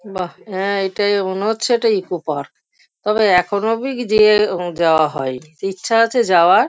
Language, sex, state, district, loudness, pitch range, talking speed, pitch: Bengali, female, West Bengal, Kolkata, -17 LUFS, 175-215 Hz, 180 wpm, 195 Hz